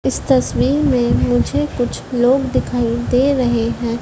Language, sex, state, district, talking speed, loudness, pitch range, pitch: Hindi, female, Madhya Pradesh, Dhar, 150 wpm, -17 LUFS, 235-260 Hz, 245 Hz